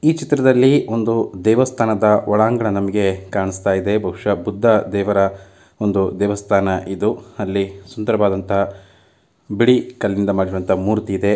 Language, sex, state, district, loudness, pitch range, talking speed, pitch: Kannada, male, Karnataka, Mysore, -18 LUFS, 95-110 Hz, 110 wpm, 100 Hz